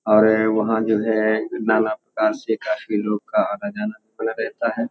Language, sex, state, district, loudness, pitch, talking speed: Hindi, male, Uttar Pradesh, Hamirpur, -21 LUFS, 110 Hz, 185 wpm